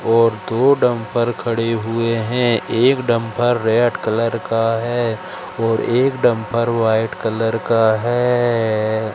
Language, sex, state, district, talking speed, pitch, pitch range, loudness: Hindi, male, Madhya Pradesh, Katni, 125 wpm, 115 Hz, 115-120 Hz, -17 LUFS